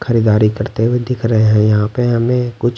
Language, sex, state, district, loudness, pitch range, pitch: Hindi, male, Bihar, Patna, -14 LUFS, 110-120 Hz, 115 Hz